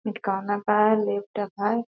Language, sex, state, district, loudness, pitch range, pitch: Hindi, female, Bihar, Purnia, -25 LUFS, 205-215 Hz, 210 Hz